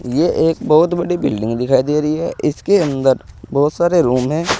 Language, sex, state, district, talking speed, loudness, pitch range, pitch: Hindi, male, Uttar Pradesh, Saharanpur, 195 wpm, -16 LUFS, 130-165 Hz, 150 Hz